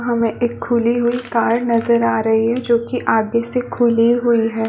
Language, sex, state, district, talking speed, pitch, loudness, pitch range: Hindi, female, Chhattisgarh, Balrampur, 205 wpm, 235 Hz, -17 LUFS, 230-240 Hz